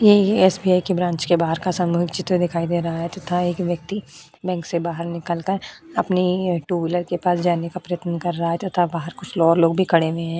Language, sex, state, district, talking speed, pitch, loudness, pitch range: Hindi, female, Uttar Pradesh, Budaun, 235 wpm, 175 Hz, -21 LUFS, 170-180 Hz